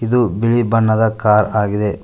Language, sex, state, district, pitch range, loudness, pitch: Kannada, male, Karnataka, Koppal, 105-115 Hz, -15 LUFS, 110 Hz